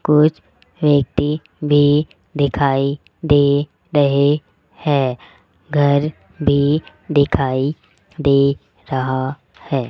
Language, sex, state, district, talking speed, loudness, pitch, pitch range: Hindi, male, Rajasthan, Jaipur, 80 wpm, -18 LUFS, 145 Hz, 135-150 Hz